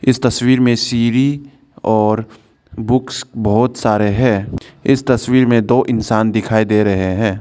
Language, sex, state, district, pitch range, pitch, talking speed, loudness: Hindi, male, Arunachal Pradesh, Lower Dibang Valley, 110-130 Hz, 120 Hz, 145 wpm, -15 LUFS